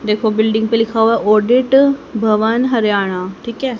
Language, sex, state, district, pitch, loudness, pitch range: Hindi, female, Haryana, Charkhi Dadri, 225 Hz, -14 LUFS, 215-240 Hz